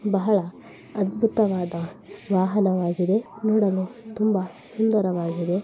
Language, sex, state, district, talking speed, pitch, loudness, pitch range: Kannada, female, Karnataka, Bellary, 65 wpm, 200 Hz, -24 LUFS, 185-215 Hz